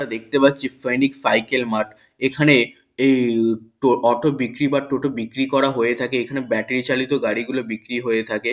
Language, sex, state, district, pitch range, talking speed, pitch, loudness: Bengali, male, West Bengal, Kolkata, 115-135 Hz, 160 wpm, 125 Hz, -20 LUFS